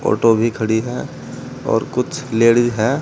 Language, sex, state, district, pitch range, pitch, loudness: Hindi, male, Uttar Pradesh, Saharanpur, 110-125 Hz, 115 Hz, -17 LUFS